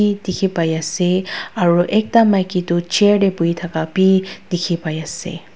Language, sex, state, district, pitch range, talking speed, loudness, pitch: Nagamese, female, Nagaland, Dimapur, 170-195 Hz, 160 wpm, -17 LUFS, 180 Hz